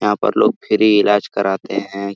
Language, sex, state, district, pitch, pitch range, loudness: Hindi, male, Jharkhand, Sahebganj, 100 Hz, 100-105 Hz, -16 LUFS